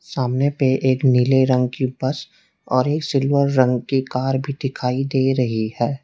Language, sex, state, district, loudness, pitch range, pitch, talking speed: Hindi, male, Uttar Pradesh, Lalitpur, -19 LUFS, 125-135 Hz, 130 Hz, 180 wpm